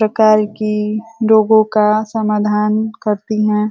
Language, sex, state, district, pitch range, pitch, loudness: Hindi, female, Uttar Pradesh, Ghazipur, 210-220 Hz, 215 Hz, -15 LUFS